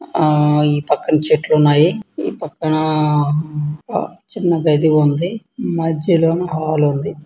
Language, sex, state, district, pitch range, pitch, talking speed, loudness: Telugu, male, Andhra Pradesh, Srikakulam, 150-165 Hz, 155 Hz, 105 wpm, -16 LUFS